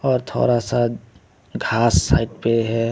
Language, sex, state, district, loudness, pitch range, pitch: Hindi, male, Tripura, West Tripura, -19 LUFS, 110-120 Hz, 115 Hz